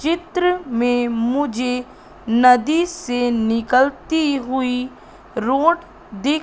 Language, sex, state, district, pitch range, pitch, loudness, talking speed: Hindi, female, Madhya Pradesh, Katni, 245-320 Hz, 260 Hz, -19 LUFS, 85 wpm